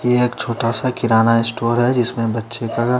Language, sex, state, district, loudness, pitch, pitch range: Hindi, male, Chandigarh, Chandigarh, -17 LUFS, 115 Hz, 115-125 Hz